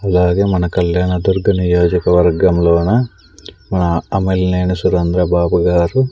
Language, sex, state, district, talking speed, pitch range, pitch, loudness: Telugu, male, Andhra Pradesh, Sri Satya Sai, 110 wpm, 90-95 Hz, 90 Hz, -14 LUFS